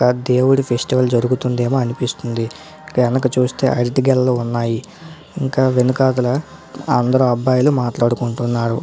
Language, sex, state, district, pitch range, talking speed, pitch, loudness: Telugu, male, Andhra Pradesh, Srikakulam, 120-130 Hz, 95 wpm, 125 Hz, -17 LUFS